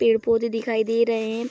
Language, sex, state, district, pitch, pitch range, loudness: Hindi, female, Bihar, Araria, 230 Hz, 225-230 Hz, -22 LUFS